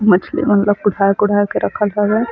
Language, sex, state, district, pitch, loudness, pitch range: Chhattisgarhi, female, Chhattisgarh, Sarguja, 205 Hz, -15 LUFS, 205-210 Hz